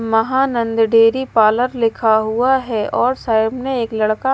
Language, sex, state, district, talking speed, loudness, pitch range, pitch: Hindi, female, Maharashtra, Mumbai Suburban, 165 wpm, -16 LUFS, 220-255 Hz, 230 Hz